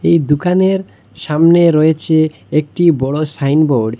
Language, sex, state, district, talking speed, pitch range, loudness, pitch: Bengali, male, Assam, Hailakandi, 120 wpm, 150-170 Hz, -13 LUFS, 155 Hz